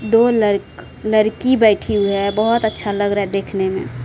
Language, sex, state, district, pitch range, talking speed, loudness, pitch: Maithili, female, Bihar, Supaul, 200-220 Hz, 180 wpm, -17 LUFS, 205 Hz